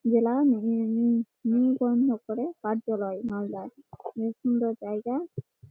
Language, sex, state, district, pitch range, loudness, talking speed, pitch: Bengali, female, West Bengal, Malda, 220-250 Hz, -27 LUFS, 85 wpm, 230 Hz